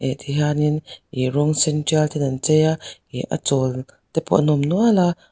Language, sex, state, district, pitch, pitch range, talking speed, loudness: Mizo, female, Mizoram, Aizawl, 150 Hz, 135-155 Hz, 215 wpm, -20 LUFS